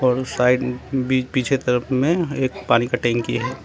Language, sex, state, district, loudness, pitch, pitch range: Hindi, male, Arunachal Pradesh, Lower Dibang Valley, -20 LUFS, 130 Hz, 125-130 Hz